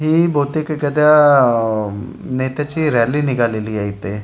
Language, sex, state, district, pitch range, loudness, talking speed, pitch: Marathi, male, Maharashtra, Gondia, 110-150 Hz, -16 LUFS, 140 wpm, 135 Hz